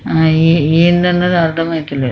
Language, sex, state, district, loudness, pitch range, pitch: Telugu, female, Andhra Pradesh, Krishna, -12 LUFS, 160-170 Hz, 165 Hz